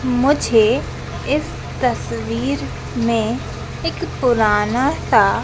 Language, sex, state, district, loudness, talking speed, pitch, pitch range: Hindi, female, Madhya Pradesh, Dhar, -19 LUFS, 75 wpm, 235 Hz, 220-255 Hz